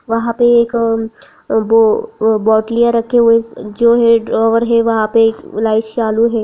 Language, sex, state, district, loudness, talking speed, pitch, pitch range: Hindi, female, Bihar, Saharsa, -13 LUFS, 160 wpm, 230 Hz, 220-235 Hz